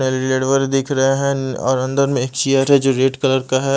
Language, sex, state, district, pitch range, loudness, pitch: Hindi, male, Odisha, Malkangiri, 130-135 Hz, -17 LUFS, 135 Hz